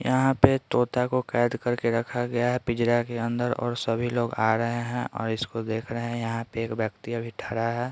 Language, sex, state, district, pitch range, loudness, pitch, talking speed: Hindi, male, Bihar, Patna, 115-120 Hz, -26 LUFS, 120 Hz, 235 wpm